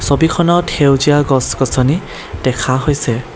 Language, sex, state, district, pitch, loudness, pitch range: Assamese, male, Assam, Kamrup Metropolitan, 135 Hz, -14 LUFS, 130-150 Hz